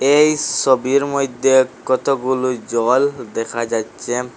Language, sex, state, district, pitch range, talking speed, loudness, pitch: Bengali, male, Assam, Hailakandi, 120-140 Hz, 95 wpm, -17 LUFS, 130 Hz